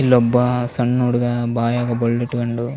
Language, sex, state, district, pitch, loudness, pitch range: Kannada, male, Karnataka, Bellary, 120 Hz, -19 LUFS, 120-125 Hz